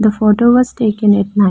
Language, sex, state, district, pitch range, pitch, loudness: English, female, Arunachal Pradesh, Lower Dibang Valley, 205-230 Hz, 215 Hz, -12 LUFS